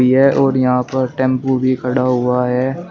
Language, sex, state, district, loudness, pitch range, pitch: Hindi, male, Uttar Pradesh, Shamli, -15 LUFS, 125-130 Hz, 130 Hz